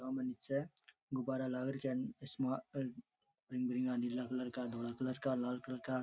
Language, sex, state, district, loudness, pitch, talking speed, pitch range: Rajasthani, male, Rajasthan, Churu, -41 LUFS, 130 Hz, 140 wpm, 125-135 Hz